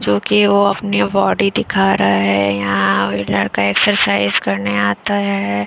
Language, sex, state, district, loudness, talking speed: Hindi, female, Bihar, Patna, -15 LUFS, 170 wpm